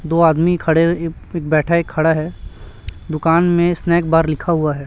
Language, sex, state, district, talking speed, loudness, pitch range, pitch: Hindi, male, Chhattisgarh, Raipur, 185 wpm, -16 LUFS, 155-170 Hz, 165 Hz